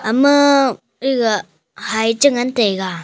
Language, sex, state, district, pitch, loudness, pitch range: Wancho, male, Arunachal Pradesh, Longding, 230 Hz, -16 LUFS, 200-270 Hz